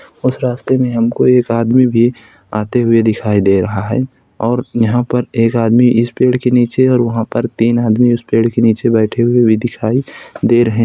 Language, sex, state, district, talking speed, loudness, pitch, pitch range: Hindi, male, Uttar Pradesh, Hamirpur, 210 wpm, -13 LUFS, 120 Hz, 115-125 Hz